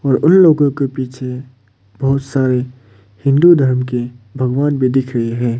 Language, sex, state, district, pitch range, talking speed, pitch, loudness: Hindi, male, Arunachal Pradesh, Papum Pare, 120-140 Hz, 160 wpm, 130 Hz, -15 LUFS